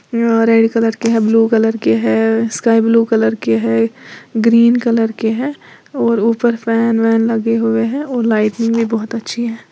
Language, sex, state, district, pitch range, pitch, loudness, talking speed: Hindi, female, Uttar Pradesh, Lalitpur, 225-230 Hz, 225 Hz, -14 LUFS, 200 wpm